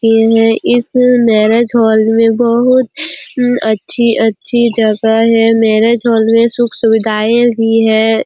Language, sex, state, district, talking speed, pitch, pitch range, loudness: Hindi, female, Chhattisgarh, Korba, 140 wpm, 225 Hz, 225-235 Hz, -10 LUFS